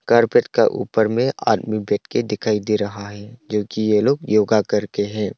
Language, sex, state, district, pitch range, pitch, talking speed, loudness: Hindi, male, Arunachal Pradesh, Longding, 105-110 Hz, 105 Hz, 210 wpm, -19 LUFS